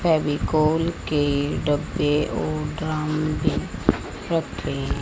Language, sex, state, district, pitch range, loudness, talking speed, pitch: Hindi, female, Haryana, Rohtak, 145-155 Hz, -24 LUFS, 85 wpm, 155 Hz